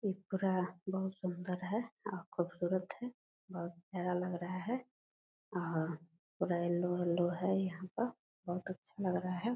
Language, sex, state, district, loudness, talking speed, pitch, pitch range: Hindi, female, Bihar, Purnia, -39 LUFS, 150 wpm, 185 Hz, 175-195 Hz